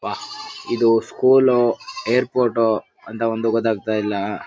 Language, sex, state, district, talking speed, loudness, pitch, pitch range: Kannada, male, Karnataka, Bijapur, 105 wpm, -19 LUFS, 115 Hz, 110-130 Hz